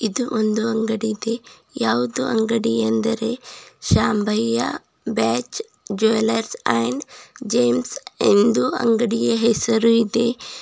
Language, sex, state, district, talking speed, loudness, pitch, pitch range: Kannada, female, Karnataka, Bidar, 90 wpm, -20 LUFS, 230 Hz, 220-240 Hz